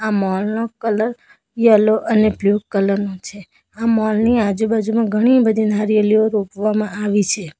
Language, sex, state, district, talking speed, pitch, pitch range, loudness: Gujarati, female, Gujarat, Valsad, 150 wpm, 215 Hz, 205-220 Hz, -17 LUFS